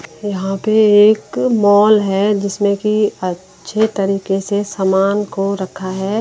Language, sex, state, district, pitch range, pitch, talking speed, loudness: Hindi, male, Delhi, New Delhi, 195-210 Hz, 200 Hz, 135 wpm, -15 LUFS